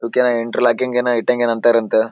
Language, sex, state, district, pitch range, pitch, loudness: Kannada, male, Karnataka, Bijapur, 115-125 Hz, 120 Hz, -17 LUFS